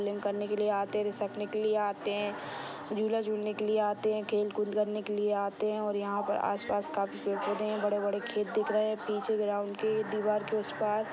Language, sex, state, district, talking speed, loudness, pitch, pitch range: Hindi, female, Maharashtra, Dhule, 200 wpm, -32 LUFS, 210 Hz, 205-215 Hz